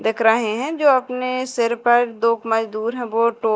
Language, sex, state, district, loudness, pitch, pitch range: Hindi, female, Madhya Pradesh, Dhar, -19 LUFS, 230 Hz, 225-250 Hz